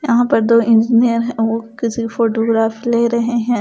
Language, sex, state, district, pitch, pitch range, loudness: Hindi, female, Punjab, Pathankot, 230 Hz, 225-235 Hz, -15 LUFS